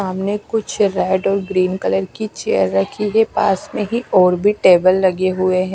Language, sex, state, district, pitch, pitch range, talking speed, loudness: Hindi, female, Punjab, Kapurthala, 190 Hz, 185-210 Hz, 200 wpm, -17 LUFS